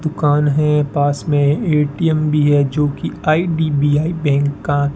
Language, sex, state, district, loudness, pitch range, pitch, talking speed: Hindi, male, Rajasthan, Bikaner, -16 LUFS, 145-155 Hz, 150 Hz, 145 wpm